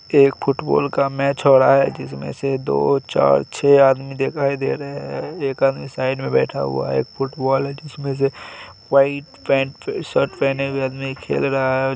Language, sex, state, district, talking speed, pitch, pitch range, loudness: Hindi, male, Bihar, Araria, 200 wpm, 135 Hz, 130-140 Hz, -19 LUFS